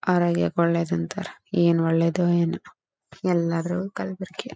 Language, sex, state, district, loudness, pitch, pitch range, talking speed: Kannada, female, Karnataka, Dharwad, -24 LUFS, 170 Hz, 165-180 Hz, 105 wpm